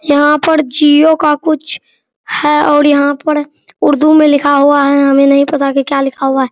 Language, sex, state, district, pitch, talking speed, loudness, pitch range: Hindi, male, Bihar, Araria, 290 Hz, 210 wpm, -10 LUFS, 280-300 Hz